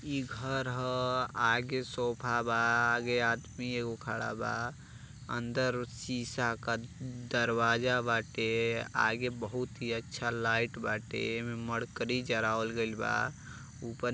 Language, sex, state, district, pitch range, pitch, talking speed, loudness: Bhojpuri, male, Uttar Pradesh, Deoria, 115-125 Hz, 120 Hz, 125 wpm, -33 LUFS